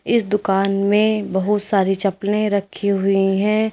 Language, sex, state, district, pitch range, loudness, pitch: Hindi, female, Uttar Pradesh, Lalitpur, 195-210 Hz, -18 LUFS, 200 Hz